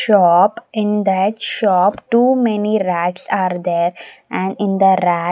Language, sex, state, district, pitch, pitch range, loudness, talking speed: English, female, Odisha, Nuapada, 195 Hz, 180-215 Hz, -16 LUFS, 160 wpm